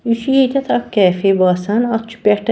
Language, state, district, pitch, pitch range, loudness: Kashmiri, Punjab, Kapurthala, 225 Hz, 195-240 Hz, -15 LUFS